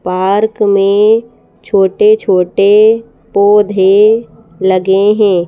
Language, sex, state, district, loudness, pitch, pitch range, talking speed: Hindi, female, Madhya Pradesh, Bhopal, -10 LUFS, 200 Hz, 190-215 Hz, 65 wpm